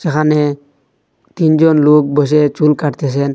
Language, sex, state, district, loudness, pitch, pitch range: Bengali, male, Assam, Hailakandi, -12 LUFS, 150 Hz, 145-155 Hz